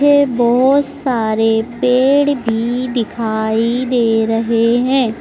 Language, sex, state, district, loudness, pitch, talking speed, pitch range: Hindi, female, Madhya Pradesh, Dhar, -15 LUFS, 240 Hz, 90 wpm, 225-260 Hz